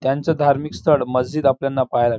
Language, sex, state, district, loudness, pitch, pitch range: Marathi, female, Maharashtra, Dhule, -19 LUFS, 135 Hz, 125-145 Hz